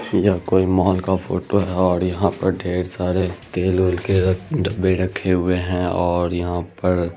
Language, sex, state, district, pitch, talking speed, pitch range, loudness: Hindi, male, Bihar, Araria, 90 Hz, 165 wpm, 90-95 Hz, -20 LUFS